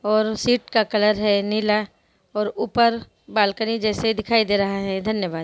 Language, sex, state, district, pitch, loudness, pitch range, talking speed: Hindi, female, Bihar, Sitamarhi, 215 Hz, -21 LUFS, 205-220 Hz, 165 wpm